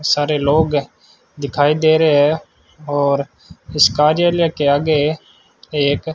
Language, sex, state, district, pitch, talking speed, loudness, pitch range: Hindi, male, Rajasthan, Bikaner, 150 Hz, 125 wpm, -16 LUFS, 145-155 Hz